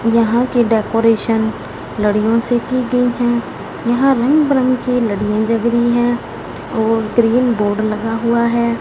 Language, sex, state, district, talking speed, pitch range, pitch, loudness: Hindi, female, Punjab, Fazilka, 150 wpm, 225-245 Hz, 235 Hz, -15 LUFS